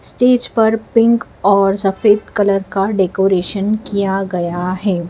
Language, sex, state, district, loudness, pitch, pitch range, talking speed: Hindi, female, Madhya Pradesh, Dhar, -15 LUFS, 200 Hz, 190-215 Hz, 130 wpm